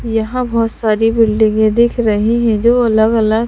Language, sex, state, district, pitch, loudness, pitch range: Hindi, female, Bihar, Patna, 225 Hz, -13 LUFS, 220-235 Hz